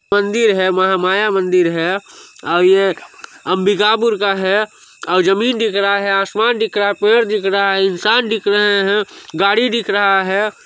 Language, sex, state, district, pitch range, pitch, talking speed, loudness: Hindi, male, Chhattisgarh, Sarguja, 190-210 Hz, 200 Hz, 175 wpm, -15 LUFS